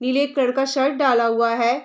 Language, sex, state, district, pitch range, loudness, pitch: Hindi, female, Bihar, Saharsa, 235-275 Hz, -19 LUFS, 260 Hz